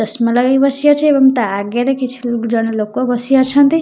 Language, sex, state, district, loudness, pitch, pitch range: Odia, female, Odisha, Khordha, -14 LUFS, 250 Hz, 230-270 Hz